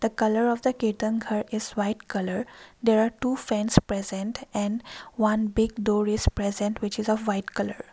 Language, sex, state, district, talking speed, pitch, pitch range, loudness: English, female, Assam, Kamrup Metropolitan, 190 wpm, 215 Hz, 210-225 Hz, -26 LUFS